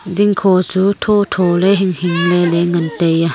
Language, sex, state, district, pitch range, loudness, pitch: Wancho, female, Arunachal Pradesh, Longding, 170-195 Hz, -14 LUFS, 180 Hz